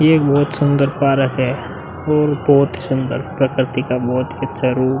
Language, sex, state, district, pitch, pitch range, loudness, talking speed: Hindi, male, Uttar Pradesh, Muzaffarnagar, 135 Hz, 130-145 Hz, -17 LUFS, 190 wpm